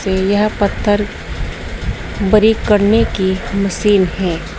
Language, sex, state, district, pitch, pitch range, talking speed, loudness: Hindi, female, Uttar Pradesh, Saharanpur, 195 Hz, 175-210 Hz, 90 wpm, -15 LUFS